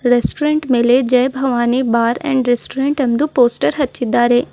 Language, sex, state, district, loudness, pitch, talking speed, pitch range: Kannada, female, Karnataka, Bidar, -15 LUFS, 250 Hz, 120 wpm, 240-270 Hz